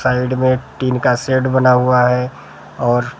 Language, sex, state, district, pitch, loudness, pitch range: Hindi, male, Maharashtra, Gondia, 125 Hz, -15 LUFS, 125-130 Hz